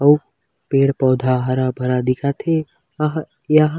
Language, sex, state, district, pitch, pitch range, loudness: Chhattisgarhi, male, Chhattisgarh, Raigarh, 135 Hz, 130-150 Hz, -19 LUFS